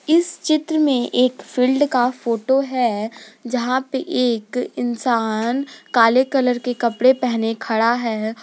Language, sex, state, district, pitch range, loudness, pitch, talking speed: Hindi, female, Jharkhand, Garhwa, 230-260 Hz, -19 LUFS, 245 Hz, 135 wpm